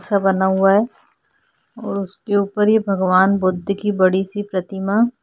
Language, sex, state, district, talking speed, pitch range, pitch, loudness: Hindi, female, Chhattisgarh, Korba, 160 wpm, 190-205 Hz, 195 Hz, -18 LUFS